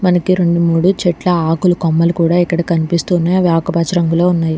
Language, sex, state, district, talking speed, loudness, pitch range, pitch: Telugu, female, Telangana, Hyderabad, 170 wpm, -14 LUFS, 165-180 Hz, 170 Hz